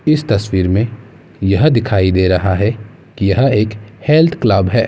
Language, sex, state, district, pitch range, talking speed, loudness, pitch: Hindi, male, Uttar Pradesh, Muzaffarnagar, 95-120 Hz, 170 wpm, -14 LUFS, 105 Hz